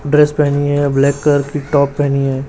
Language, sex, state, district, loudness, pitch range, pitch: Hindi, male, Chhattisgarh, Raipur, -14 LUFS, 140-145 Hz, 145 Hz